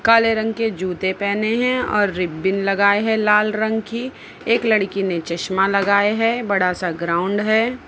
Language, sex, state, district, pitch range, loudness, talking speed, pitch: Hindi, male, Maharashtra, Mumbai Suburban, 190-225 Hz, -19 LUFS, 175 wpm, 205 Hz